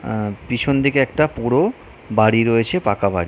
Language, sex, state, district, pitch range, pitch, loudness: Bengali, male, West Bengal, North 24 Parganas, 110-135 Hz, 115 Hz, -18 LUFS